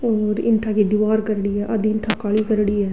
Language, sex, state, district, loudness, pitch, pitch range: Rajasthani, female, Rajasthan, Nagaur, -20 LUFS, 215 Hz, 205-215 Hz